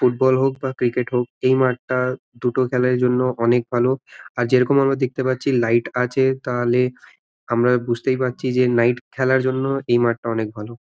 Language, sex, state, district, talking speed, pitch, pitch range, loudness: Bengali, male, West Bengal, Malda, 180 wpm, 125 Hz, 120-130 Hz, -20 LUFS